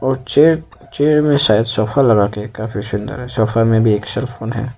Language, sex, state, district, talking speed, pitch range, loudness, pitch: Hindi, male, Arunachal Pradesh, Papum Pare, 190 wpm, 110-135 Hz, -16 LUFS, 115 Hz